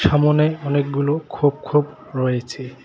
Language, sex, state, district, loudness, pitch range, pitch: Bengali, male, West Bengal, Cooch Behar, -20 LUFS, 135-150 Hz, 145 Hz